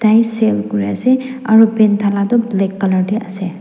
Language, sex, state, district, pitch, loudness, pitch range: Nagamese, female, Nagaland, Dimapur, 205 Hz, -14 LUFS, 195-225 Hz